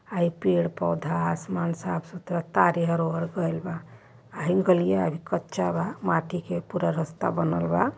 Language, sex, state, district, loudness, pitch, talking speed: Hindi, female, Uttar Pradesh, Varanasi, -26 LUFS, 165 Hz, 115 wpm